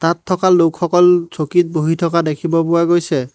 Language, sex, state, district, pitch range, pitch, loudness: Assamese, male, Assam, Hailakandi, 165-175 Hz, 170 Hz, -15 LUFS